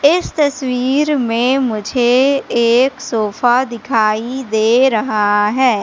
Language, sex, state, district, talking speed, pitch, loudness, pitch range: Hindi, female, Madhya Pradesh, Katni, 105 wpm, 250 Hz, -15 LUFS, 220-265 Hz